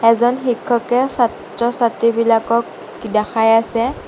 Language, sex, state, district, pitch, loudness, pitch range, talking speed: Assamese, female, Assam, Sonitpur, 230 Hz, -16 LUFS, 225-240 Hz, 75 wpm